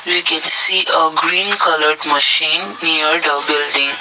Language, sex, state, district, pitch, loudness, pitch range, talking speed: English, male, Assam, Kamrup Metropolitan, 150 Hz, -12 LUFS, 145-155 Hz, 150 wpm